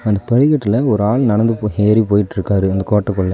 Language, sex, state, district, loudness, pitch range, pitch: Tamil, male, Tamil Nadu, Nilgiris, -15 LUFS, 100-115 Hz, 105 Hz